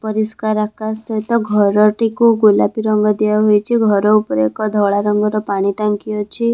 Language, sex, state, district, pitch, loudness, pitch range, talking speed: Odia, female, Odisha, Khordha, 215 Hz, -15 LUFS, 210-215 Hz, 145 wpm